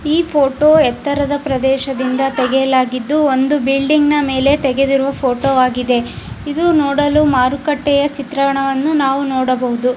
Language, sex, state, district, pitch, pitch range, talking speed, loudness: Kannada, female, Karnataka, Bijapur, 275 Hz, 260-290 Hz, 115 wpm, -14 LUFS